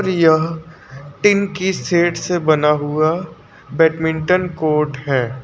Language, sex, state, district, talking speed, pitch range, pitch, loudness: Hindi, male, Uttar Pradesh, Lucknow, 110 wpm, 150-175 Hz, 160 Hz, -17 LUFS